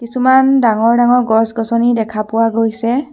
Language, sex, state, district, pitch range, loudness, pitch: Assamese, female, Assam, Sonitpur, 225-245 Hz, -13 LUFS, 230 Hz